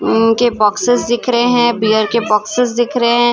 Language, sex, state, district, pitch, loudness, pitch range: Hindi, female, Maharashtra, Gondia, 240 Hz, -13 LUFS, 225-240 Hz